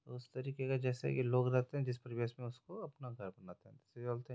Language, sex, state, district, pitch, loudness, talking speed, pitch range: Hindi, male, Bihar, Jahanabad, 125 Hz, -40 LUFS, 205 wpm, 120-130 Hz